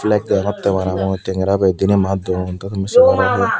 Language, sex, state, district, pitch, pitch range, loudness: Chakma, female, Tripura, Unakoti, 95 Hz, 95-100 Hz, -16 LUFS